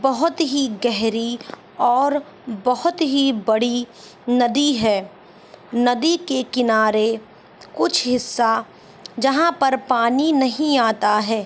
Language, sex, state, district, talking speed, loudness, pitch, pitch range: Hindi, female, Bihar, Saharsa, 110 wpm, -19 LUFS, 245 Hz, 225-275 Hz